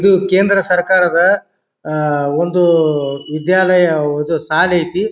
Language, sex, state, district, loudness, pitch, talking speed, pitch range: Kannada, male, Karnataka, Bijapur, -14 LUFS, 175 Hz, 105 wpm, 155-185 Hz